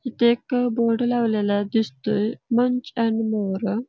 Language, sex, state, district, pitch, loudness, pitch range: Marathi, female, Karnataka, Belgaum, 230 Hz, -22 LUFS, 215-245 Hz